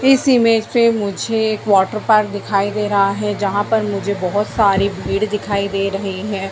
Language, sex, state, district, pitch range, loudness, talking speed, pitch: Hindi, female, Bihar, Jamui, 200-215 Hz, -17 LUFS, 195 wpm, 205 Hz